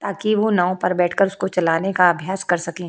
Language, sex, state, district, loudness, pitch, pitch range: Hindi, female, Goa, North and South Goa, -19 LUFS, 180 Hz, 175-195 Hz